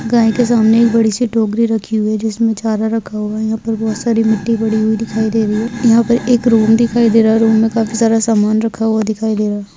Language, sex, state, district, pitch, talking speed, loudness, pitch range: Hindi, female, Rajasthan, Churu, 225 Hz, 270 wpm, -14 LUFS, 220-230 Hz